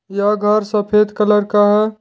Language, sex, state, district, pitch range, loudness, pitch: Hindi, male, Jharkhand, Deoghar, 205-210 Hz, -15 LUFS, 210 Hz